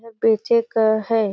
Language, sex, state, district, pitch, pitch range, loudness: Surgujia, female, Chhattisgarh, Sarguja, 225 Hz, 220-230 Hz, -19 LUFS